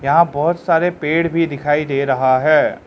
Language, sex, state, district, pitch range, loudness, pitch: Hindi, male, Arunachal Pradesh, Lower Dibang Valley, 140-170 Hz, -16 LUFS, 155 Hz